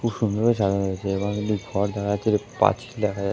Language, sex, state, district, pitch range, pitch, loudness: Bengali, male, West Bengal, Kolkata, 100-110 Hz, 105 Hz, -24 LUFS